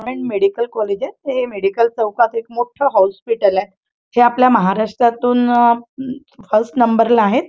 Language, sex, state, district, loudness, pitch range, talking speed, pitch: Marathi, female, Maharashtra, Chandrapur, -16 LUFS, 215-245 Hz, 135 wpm, 235 Hz